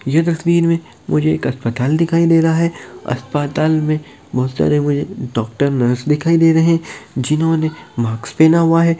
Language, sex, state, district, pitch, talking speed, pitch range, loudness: Hindi, male, Uttar Pradesh, Deoria, 155 Hz, 175 wpm, 125-165 Hz, -16 LUFS